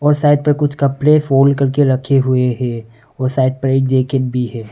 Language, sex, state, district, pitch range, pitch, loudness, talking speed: Hindi, male, Arunachal Pradesh, Longding, 130-140 Hz, 135 Hz, -15 LUFS, 205 wpm